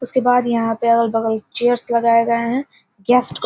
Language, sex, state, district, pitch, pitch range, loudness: Hindi, female, Bihar, Gopalganj, 235 Hz, 225-245 Hz, -17 LUFS